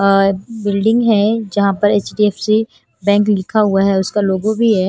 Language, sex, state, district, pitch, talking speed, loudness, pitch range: Hindi, female, Haryana, Charkhi Dadri, 205 Hz, 170 wpm, -15 LUFS, 195-215 Hz